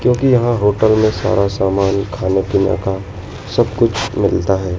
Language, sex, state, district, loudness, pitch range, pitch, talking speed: Hindi, male, Madhya Pradesh, Dhar, -15 LUFS, 95-110 Hz, 105 Hz, 165 wpm